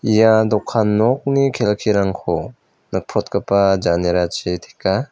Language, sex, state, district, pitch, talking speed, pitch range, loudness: Garo, male, Meghalaya, West Garo Hills, 105 Hz, 80 wpm, 95-110 Hz, -18 LUFS